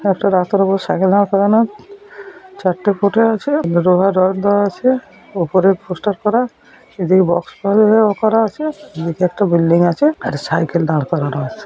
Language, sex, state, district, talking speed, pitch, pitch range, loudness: Bengali, female, West Bengal, Paschim Medinipur, 175 wpm, 195 Hz, 175-220 Hz, -15 LUFS